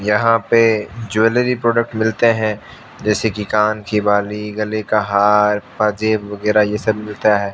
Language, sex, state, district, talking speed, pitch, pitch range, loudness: Hindi, male, Rajasthan, Bikaner, 160 wpm, 105 Hz, 105-110 Hz, -17 LUFS